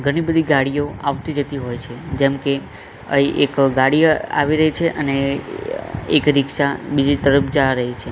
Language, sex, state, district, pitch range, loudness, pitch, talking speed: Gujarati, male, Gujarat, Gandhinagar, 135-145 Hz, -18 LUFS, 140 Hz, 160 wpm